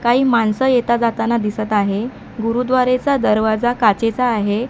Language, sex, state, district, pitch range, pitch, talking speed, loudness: Marathi, male, Maharashtra, Mumbai Suburban, 215-250 Hz, 235 Hz, 130 wpm, -17 LUFS